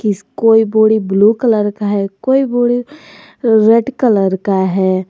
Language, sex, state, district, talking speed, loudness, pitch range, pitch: Hindi, female, Jharkhand, Garhwa, 155 wpm, -13 LUFS, 200-240 Hz, 220 Hz